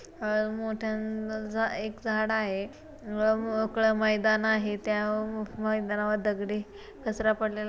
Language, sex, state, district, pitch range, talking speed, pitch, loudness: Marathi, female, Maharashtra, Chandrapur, 215-220 Hz, 100 wpm, 215 Hz, -29 LUFS